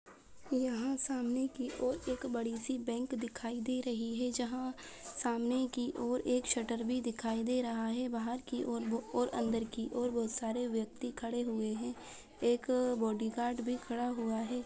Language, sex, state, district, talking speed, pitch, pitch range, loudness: Hindi, female, Chhattisgarh, Balrampur, 170 wpm, 245 Hz, 230-250 Hz, -36 LUFS